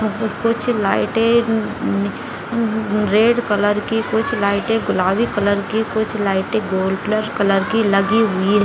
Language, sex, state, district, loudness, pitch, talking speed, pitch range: Hindi, female, Bihar, Saran, -18 LUFS, 215 Hz, 130 wpm, 200-225 Hz